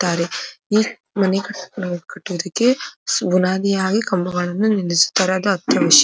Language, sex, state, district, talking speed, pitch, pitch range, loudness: Kannada, female, Karnataka, Dharwad, 80 wpm, 185 Hz, 180-205 Hz, -19 LUFS